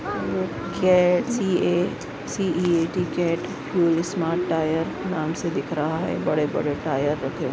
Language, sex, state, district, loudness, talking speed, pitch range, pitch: Hindi, male, Maharashtra, Nagpur, -24 LUFS, 135 wpm, 155-180 Hz, 170 Hz